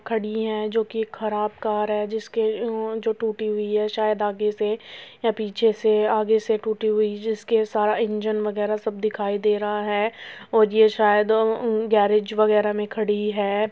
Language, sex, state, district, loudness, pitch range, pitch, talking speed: Hindi, female, Uttar Pradesh, Muzaffarnagar, -23 LUFS, 210-220 Hz, 215 Hz, 180 wpm